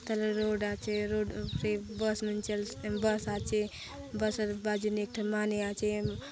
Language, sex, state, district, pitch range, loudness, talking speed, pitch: Halbi, female, Chhattisgarh, Bastar, 205-215 Hz, -33 LUFS, 180 wpm, 210 Hz